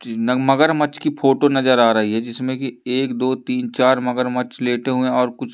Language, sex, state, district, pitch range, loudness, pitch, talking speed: Hindi, male, Madhya Pradesh, Umaria, 125-135 Hz, -18 LUFS, 125 Hz, 225 wpm